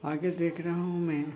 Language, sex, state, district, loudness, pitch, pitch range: Hindi, male, Uttar Pradesh, Hamirpur, -31 LUFS, 170 Hz, 150-175 Hz